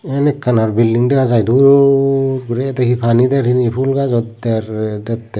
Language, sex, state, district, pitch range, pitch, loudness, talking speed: Chakma, male, Tripura, Unakoti, 115-135 Hz, 125 Hz, -14 LUFS, 190 wpm